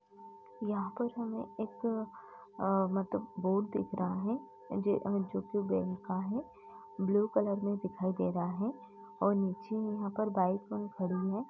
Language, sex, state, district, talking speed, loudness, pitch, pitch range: Hindi, female, Uttar Pradesh, Etah, 160 wpm, -35 LUFS, 195 Hz, 180-215 Hz